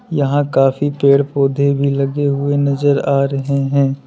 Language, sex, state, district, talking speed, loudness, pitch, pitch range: Hindi, male, Uttar Pradesh, Lalitpur, 160 wpm, -15 LUFS, 140 Hz, 140-145 Hz